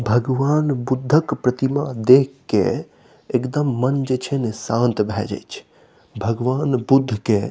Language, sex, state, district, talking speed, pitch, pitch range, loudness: Maithili, male, Bihar, Saharsa, 150 wpm, 130 Hz, 115-135 Hz, -20 LUFS